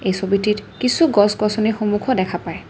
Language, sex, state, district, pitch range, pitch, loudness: Assamese, female, Assam, Kamrup Metropolitan, 195-220 Hz, 210 Hz, -18 LUFS